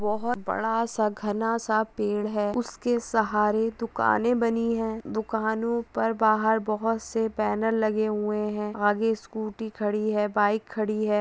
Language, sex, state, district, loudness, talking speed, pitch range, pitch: Hindi, female, Bihar, Madhepura, -26 LUFS, 150 wpm, 210-225 Hz, 220 Hz